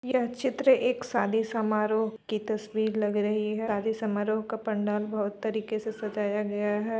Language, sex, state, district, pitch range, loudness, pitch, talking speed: Hindi, female, Uttar Pradesh, Muzaffarnagar, 210-225 Hz, -29 LUFS, 220 Hz, 170 wpm